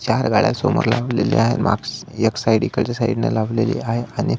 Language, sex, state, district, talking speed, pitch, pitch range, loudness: Marathi, male, Maharashtra, Solapur, 180 wpm, 115 Hz, 110-120 Hz, -19 LUFS